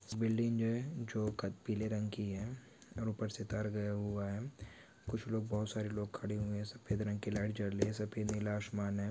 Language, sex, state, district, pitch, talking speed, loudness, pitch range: Hindi, male, Chhattisgarh, Korba, 105 Hz, 225 wpm, -39 LUFS, 105-110 Hz